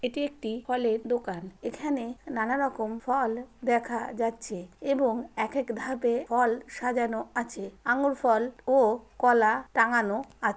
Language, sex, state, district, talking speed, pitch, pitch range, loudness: Bengali, female, West Bengal, Malda, 120 wpm, 240 Hz, 225-255 Hz, -28 LUFS